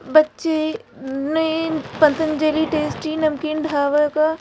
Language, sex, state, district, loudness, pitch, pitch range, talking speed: Hindi, female, Madhya Pradesh, Bhopal, -20 LUFS, 310 Hz, 300-315 Hz, 95 wpm